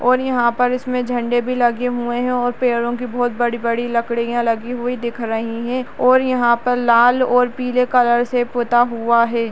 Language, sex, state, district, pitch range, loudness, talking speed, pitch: Kumaoni, female, Uttarakhand, Uttarkashi, 235-250 Hz, -18 LUFS, 195 wpm, 240 Hz